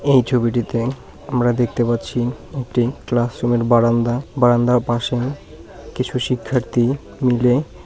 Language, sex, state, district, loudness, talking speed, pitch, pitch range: Bengali, male, West Bengal, Jalpaiguri, -19 LUFS, 100 wpm, 120 Hz, 120-125 Hz